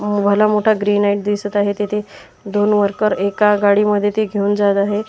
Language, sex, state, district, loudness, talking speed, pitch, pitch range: Marathi, male, Maharashtra, Washim, -16 LUFS, 175 wpm, 205 Hz, 205-210 Hz